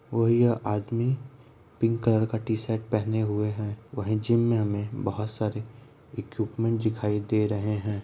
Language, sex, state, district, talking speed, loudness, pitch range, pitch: Hindi, male, Uttar Pradesh, Varanasi, 165 wpm, -27 LUFS, 105-115 Hz, 110 Hz